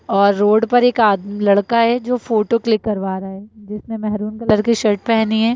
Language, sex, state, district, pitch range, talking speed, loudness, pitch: Hindi, female, Uttar Pradesh, Etah, 205-230 Hz, 225 wpm, -16 LUFS, 215 Hz